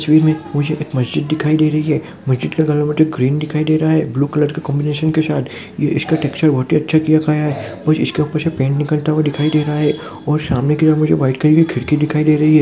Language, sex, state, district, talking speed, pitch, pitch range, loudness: Hindi, male, Rajasthan, Churu, 245 wpm, 150 Hz, 150-155 Hz, -16 LUFS